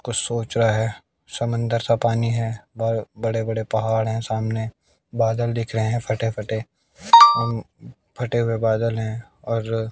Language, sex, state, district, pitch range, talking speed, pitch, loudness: Hindi, male, Haryana, Jhajjar, 110-115 Hz, 155 wpm, 115 Hz, -21 LUFS